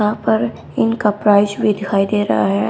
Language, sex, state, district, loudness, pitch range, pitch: Hindi, female, Haryana, Rohtak, -16 LUFS, 200-215 Hz, 210 Hz